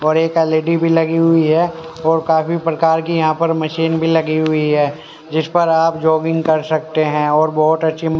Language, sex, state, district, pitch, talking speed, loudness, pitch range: Hindi, male, Haryana, Rohtak, 160 Hz, 205 wpm, -15 LUFS, 155-165 Hz